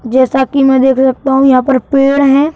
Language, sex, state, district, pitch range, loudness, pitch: Hindi, male, Madhya Pradesh, Bhopal, 260-275 Hz, -10 LUFS, 265 Hz